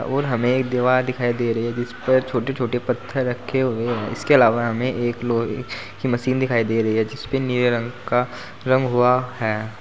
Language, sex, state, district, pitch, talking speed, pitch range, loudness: Hindi, male, Uttar Pradesh, Saharanpur, 120 Hz, 210 wpm, 115-130 Hz, -21 LUFS